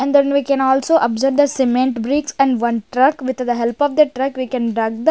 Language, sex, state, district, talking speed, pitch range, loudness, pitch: English, female, Punjab, Kapurthala, 260 wpm, 245-280 Hz, -17 LUFS, 265 Hz